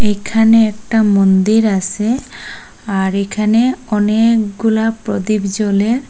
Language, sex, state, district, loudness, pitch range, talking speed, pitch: Bengali, female, Assam, Hailakandi, -14 LUFS, 200-225 Hz, 90 wpm, 215 Hz